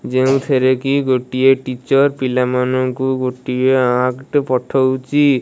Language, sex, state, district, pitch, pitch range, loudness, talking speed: Odia, male, Odisha, Malkangiri, 130 Hz, 125-135 Hz, -16 LUFS, 120 wpm